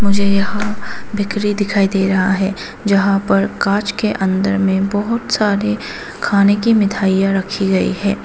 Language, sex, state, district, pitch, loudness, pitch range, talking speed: Hindi, female, Arunachal Pradesh, Papum Pare, 200 Hz, -16 LUFS, 195-205 Hz, 155 wpm